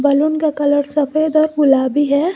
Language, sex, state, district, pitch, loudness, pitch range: Hindi, female, Jharkhand, Garhwa, 290 Hz, -15 LUFS, 285-310 Hz